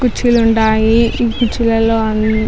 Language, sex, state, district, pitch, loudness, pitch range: Telugu, female, Andhra Pradesh, Chittoor, 225 Hz, -13 LUFS, 220-235 Hz